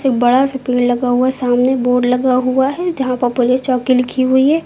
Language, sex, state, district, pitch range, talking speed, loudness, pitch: Hindi, female, Uttar Pradesh, Lucknow, 250-265 Hz, 245 wpm, -14 LUFS, 255 Hz